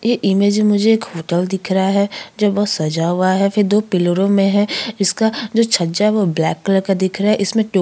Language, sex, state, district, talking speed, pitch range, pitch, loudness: Hindi, female, Chhattisgarh, Sukma, 230 wpm, 185-210 Hz, 200 Hz, -16 LUFS